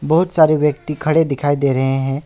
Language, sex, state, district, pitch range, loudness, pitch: Hindi, male, West Bengal, Alipurduar, 135-155 Hz, -16 LUFS, 150 Hz